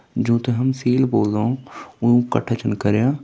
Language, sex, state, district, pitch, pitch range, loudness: Hindi, male, Uttarakhand, Tehri Garhwal, 120 Hz, 115-130 Hz, -20 LUFS